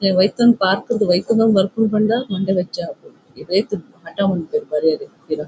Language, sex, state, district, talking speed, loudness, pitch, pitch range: Tulu, female, Karnataka, Dakshina Kannada, 165 wpm, -18 LUFS, 195 Hz, 175-220 Hz